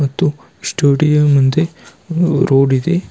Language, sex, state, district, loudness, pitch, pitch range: Kannada, male, Karnataka, Bidar, -14 LUFS, 150 Hz, 135-165 Hz